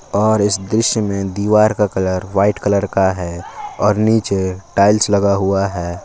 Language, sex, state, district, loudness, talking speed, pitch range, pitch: Hindi, male, Jharkhand, Palamu, -16 LUFS, 170 wpm, 95-105 Hz, 100 Hz